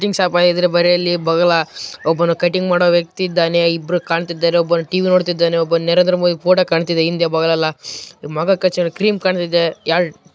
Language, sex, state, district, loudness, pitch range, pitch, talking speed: Kannada, male, Karnataka, Raichur, -16 LUFS, 165-180 Hz, 175 Hz, 160 wpm